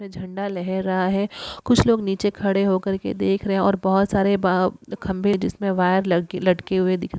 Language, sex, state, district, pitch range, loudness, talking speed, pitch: Hindi, female, Uttar Pradesh, Gorakhpur, 185-195 Hz, -21 LUFS, 210 wpm, 190 Hz